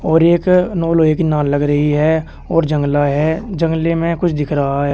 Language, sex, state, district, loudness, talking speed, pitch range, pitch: Hindi, male, Uttar Pradesh, Shamli, -15 LUFS, 220 wpm, 145-165 Hz, 160 Hz